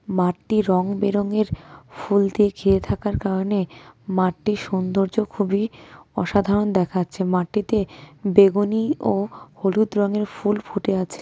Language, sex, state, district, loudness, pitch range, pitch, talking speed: Bengali, female, West Bengal, Cooch Behar, -22 LUFS, 185-210 Hz, 200 Hz, 105 wpm